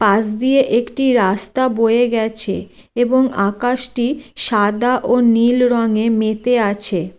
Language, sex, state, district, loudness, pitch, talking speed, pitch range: Bengali, female, West Bengal, Jalpaiguri, -15 LUFS, 235 Hz, 140 wpm, 215-250 Hz